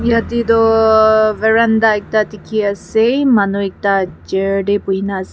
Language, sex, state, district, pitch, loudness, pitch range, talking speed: Nagamese, female, Nagaland, Kohima, 215 Hz, -14 LUFS, 200-225 Hz, 125 wpm